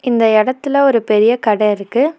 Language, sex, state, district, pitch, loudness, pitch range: Tamil, female, Tamil Nadu, Nilgiris, 235 Hz, -14 LUFS, 215-265 Hz